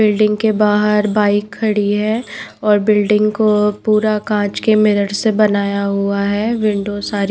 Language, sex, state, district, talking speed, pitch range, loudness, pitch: Hindi, female, Himachal Pradesh, Shimla, 155 wpm, 205-215 Hz, -15 LUFS, 210 Hz